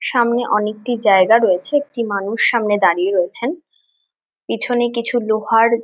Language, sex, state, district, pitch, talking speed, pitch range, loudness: Bengali, female, West Bengal, Dakshin Dinajpur, 230 Hz, 125 wpm, 205-245 Hz, -17 LUFS